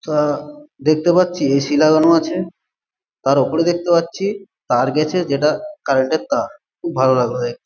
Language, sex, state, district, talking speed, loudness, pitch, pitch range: Bengali, male, West Bengal, Malda, 140 wpm, -17 LUFS, 155 Hz, 140-175 Hz